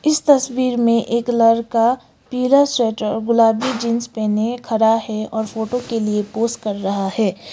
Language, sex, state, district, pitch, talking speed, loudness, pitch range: Hindi, female, Sikkim, Gangtok, 230 Hz, 165 wpm, -18 LUFS, 220-245 Hz